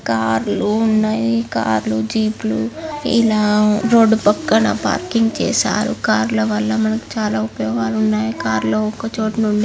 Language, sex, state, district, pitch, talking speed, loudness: Telugu, female, Andhra Pradesh, Guntur, 210 Hz, 130 wpm, -17 LUFS